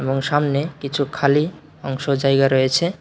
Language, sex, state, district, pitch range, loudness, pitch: Bengali, male, Tripura, West Tripura, 135-145 Hz, -19 LUFS, 140 Hz